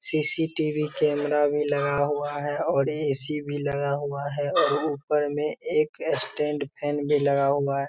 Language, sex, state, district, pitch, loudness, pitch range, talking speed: Hindi, male, Bihar, Darbhanga, 145 Hz, -25 LUFS, 140-150 Hz, 165 wpm